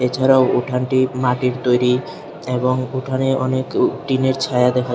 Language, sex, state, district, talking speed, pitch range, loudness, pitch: Bengali, male, Tripura, Unakoti, 135 wpm, 125-130 Hz, -18 LUFS, 130 Hz